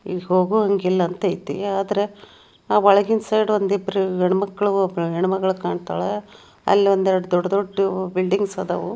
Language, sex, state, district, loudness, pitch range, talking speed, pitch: Kannada, female, Karnataka, Dharwad, -20 LUFS, 185-200 Hz, 155 wpm, 195 Hz